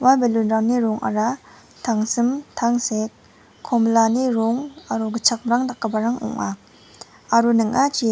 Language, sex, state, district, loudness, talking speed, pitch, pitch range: Garo, female, Meghalaya, West Garo Hills, -20 LUFS, 95 wpm, 230 Hz, 220-245 Hz